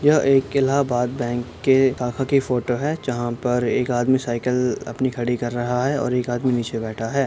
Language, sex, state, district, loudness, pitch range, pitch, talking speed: Hindi, male, Uttar Pradesh, Budaun, -21 LUFS, 120-135 Hz, 125 Hz, 205 wpm